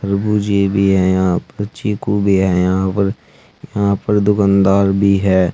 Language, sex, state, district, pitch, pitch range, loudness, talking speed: Hindi, male, Uttar Pradesh, Saharanpur, 100 Hz, 95-105 Hz, -15 LUFS, 165 wpm